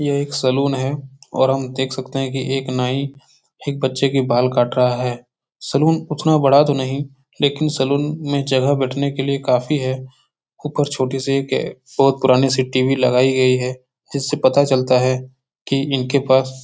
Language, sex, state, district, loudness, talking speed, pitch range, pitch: Hindi, male, Uttar Pradesh, Etah, -18 LUFS, 190 wpm, 130-140 Hz, 135 Hz